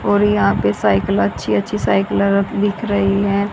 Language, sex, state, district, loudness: Hindi, female, Haryana, Charkhi Dadri, -17 LUFS